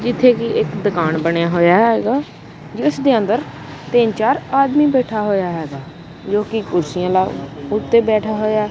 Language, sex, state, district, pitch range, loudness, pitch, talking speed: Punjabi, male, Punjab, Kapurthala, 170-230 Hz, -17 LUFS, 210 Hz, 150 wpm